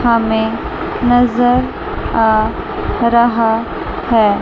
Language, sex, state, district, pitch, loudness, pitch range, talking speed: Hindi, male, Chandigarh, Chandigarh, 230 Hz, -15 LUFS, 220-240 Hz, 70 wpm